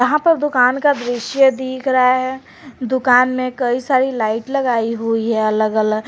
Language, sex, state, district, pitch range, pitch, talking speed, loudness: Hindi, female, Jharkhand, Garhwa, 230-260 Hz, 255 Hz, 180 wpm, -16 LUFS